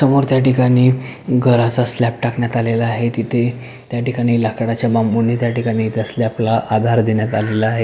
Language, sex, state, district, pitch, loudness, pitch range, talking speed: Marathi, male, Maharashtra, Pune, 120 Hz, -16 LUFS, 115-125 Hz, 155 wpm